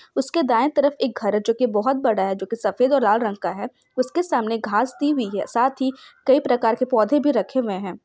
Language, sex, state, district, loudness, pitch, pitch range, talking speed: Hindi, female, Bihar, Saran, -21 LUFS, 245 Hz, 210-270 Hz, 285 wpm